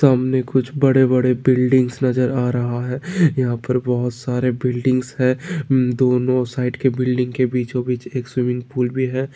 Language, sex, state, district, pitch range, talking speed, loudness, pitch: Hindi, male, Maharashtra, Pune, 125-130 Hz, 155 wpm, -19 LUFS, 125 Hz